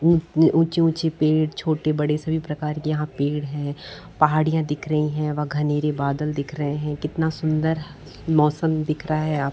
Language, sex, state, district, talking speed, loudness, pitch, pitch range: Hindi, female, Chhattisgarh, Bastar, 190 wpm, -22 LUFS, 155 Hz, 150-160 Hz